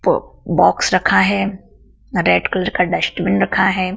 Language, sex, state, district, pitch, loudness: Hindi, female, Madhya Pradesh, Dhar, 190 Hz, -16 LUFS